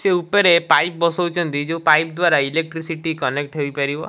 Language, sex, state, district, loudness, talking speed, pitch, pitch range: Odia, male, Odisha, Malkangiri, -18 LUFS, 175 wpm, 165 Hz, 145-175 Hz